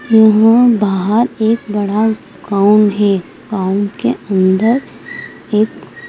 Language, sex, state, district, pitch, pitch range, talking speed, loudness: Hindi, female, Madhya Pradesh, Dhar, 210 Hz, 200-220 Hz, 100 wpm, -13 LUFS